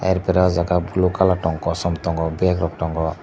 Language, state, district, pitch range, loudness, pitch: Kokborok, Tripura, Dhalai, 80-90 Hz, -20 LUFS, 85 Hz